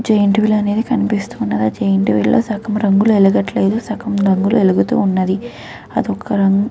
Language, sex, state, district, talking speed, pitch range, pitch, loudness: Telugu, female, Andhra Pradesh, Krishna, 145 wpm, 195-215 Hz, 205 Hz, -15 LUFS